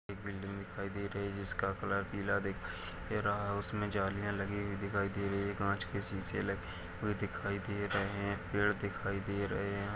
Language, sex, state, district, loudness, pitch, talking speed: Hindi, male, Uttar Pradesh, Etah, -37 LUFS, 100 Hz, 215 wpm